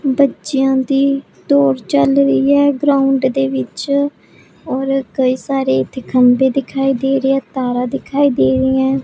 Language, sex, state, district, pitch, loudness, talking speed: Punjabi, female, Punjab, Pathankot, 265 Hz, -15 LUFS, 145 wpm